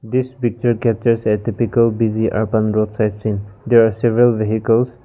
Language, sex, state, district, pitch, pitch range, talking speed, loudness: English, male, Nagaland, Kohima, 115 Hz, 110-120 Hz, 155 wpm, -17 LUFS